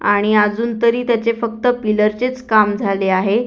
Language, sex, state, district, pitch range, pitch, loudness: Marathi, female, Maharashtra, Aurangabad, 210-235 Hz, 220 Hz, -16 LUFS